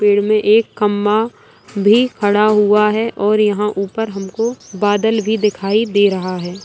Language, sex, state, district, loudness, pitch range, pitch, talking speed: Hindi, male, Bihar, Saran, -15 LUFS, 205-220 Hz, 210 Hz, 160 wpm